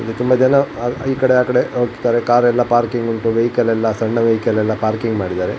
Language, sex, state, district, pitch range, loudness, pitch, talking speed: Kannada, male, Karnataka, Dakshina Kannada, 115-120 Hz, -16 LUFS, 120 Hz, 205 wpm